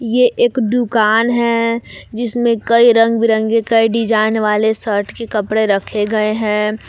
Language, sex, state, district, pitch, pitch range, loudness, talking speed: Hindi, female, Jharkhand, Palamu, 225 Hz, 215-235 Hz, -15 LUFS, 150 wpm